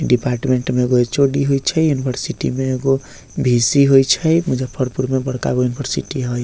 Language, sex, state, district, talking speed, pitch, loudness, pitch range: Bajjika, male, Bihar, Vaishali, 165 wpm, 130 Hz, -17 LUFS, 125-140 Hz